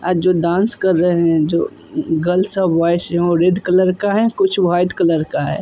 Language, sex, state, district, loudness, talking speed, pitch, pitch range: Hindi, male, Uttar Pradesh, Budaun, -16 LUFS, 235 wpm, 180 Hz, 170-190 Hz